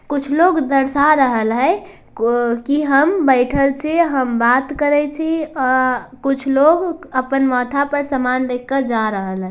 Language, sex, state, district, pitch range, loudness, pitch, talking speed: Hindi, female, Bihar, Darbhanga, 250-290 Hz, -16 LUFS, 270 Hz, 160 wpm